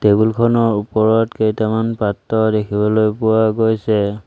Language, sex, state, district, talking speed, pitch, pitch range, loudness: Assamese, male, Assam, Sonitpur, 110 wpm, 110 Hz, 105-110 Hz, -16 LUFS